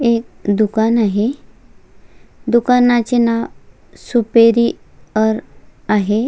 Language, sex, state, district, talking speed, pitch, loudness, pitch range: Marathi, female, Maharashtra, Solapur, 75 wpm, 230 Hz, -15 LUFS, 215-235 Hz